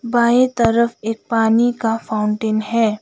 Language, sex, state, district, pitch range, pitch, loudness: Hindi, female, Sikkim, Gangtok, 220-235 Hz, 225 Hz, -17 LUFS